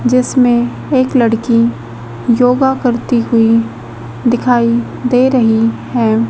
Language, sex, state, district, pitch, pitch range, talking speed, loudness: Hindi, female, Haryana, Jhajjar, 235 Hz, 225-250 Hz, 95 wpm, -13 LUFS